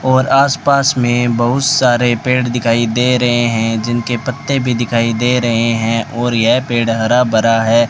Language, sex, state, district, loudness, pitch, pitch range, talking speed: Hindi, male, Rajasthan, Bikaner, -14 LUFS, 120 Hz, 115-125 Hz, 180 wpm